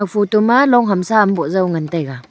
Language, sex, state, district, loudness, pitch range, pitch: Wancho, female, Arunachal Pradesh, Longding, -15 LUFS, 170-215 Hz, 195 Hz